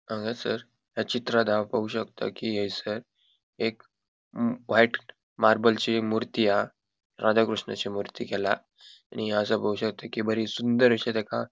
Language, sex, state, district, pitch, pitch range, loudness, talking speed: Konkani, male, Goa, North and South Goa, 110 Hz, 105-115 Hz, -27 LUFS, 145 wpm